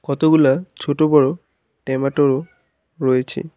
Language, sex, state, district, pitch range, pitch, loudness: Bengali, male, West Bengal, Alipurduar, 135-160 Hz, 145 Hz, -18 LUFS